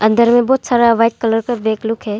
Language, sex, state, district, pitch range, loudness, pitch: Hindi, female, Arunachal Pradesh, Longding, 220-240 Hz, -14 LUFS, 230 Hz